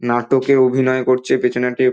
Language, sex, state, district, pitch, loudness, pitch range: Bengali, male, West Bengal, North 24 Parganas, 130 Hz, -16 LUFS, 125-130 Hz